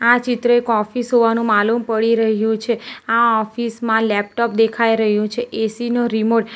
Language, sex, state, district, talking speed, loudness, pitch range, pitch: Gujarati, female, Gujarat, Valsad, 185 wpm, -17 LUFS, 220-235 Hz, 230 Hz